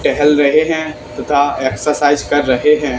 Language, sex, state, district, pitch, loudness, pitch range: Hindi, male, Haryana, Charkhi Dadri, 145 Hz, -14 LUFS, 140-150 Hz